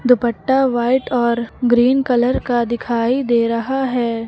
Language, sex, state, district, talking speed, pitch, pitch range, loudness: Hindi, female, Uttar Pradesh, Lucknow, 140 wpm, 240 Hz, 235-255 Hz, -17 LUFS